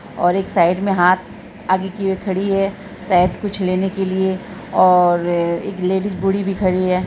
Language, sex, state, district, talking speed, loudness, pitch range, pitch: Hindi, female, Bihar, Araria, 185 wpm, -18 LUFS, 180-195 Hz, 190 Hz